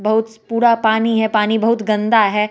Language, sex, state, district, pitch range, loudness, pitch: Hindi, female, Bihar, West Champaran, 215-225 Hz, -16 LUFS, 220 Hz